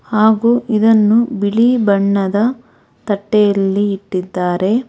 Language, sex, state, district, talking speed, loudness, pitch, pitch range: Kannada, female, Karnataka, Bangalore, 75 wpm, -14 LUFS, 210 Hz, 195-225 Hz